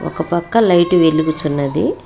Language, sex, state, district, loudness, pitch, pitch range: Telugu, female, Telangana, Hyderabad, -15 LUFS, 160 Hz, 155-175 Hz